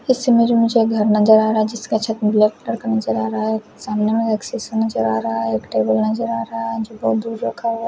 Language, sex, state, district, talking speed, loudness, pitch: Hindi, male, Odisha, Khordha, 275 wpm, -18 LUFS, 215 Hz